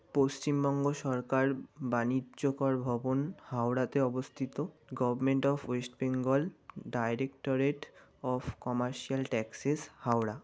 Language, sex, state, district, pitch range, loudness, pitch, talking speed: Bengali, male, West Bengal, North 24 Parganas, 125-140 Hz, -33 LUFS, 130 Hz, 85 wpm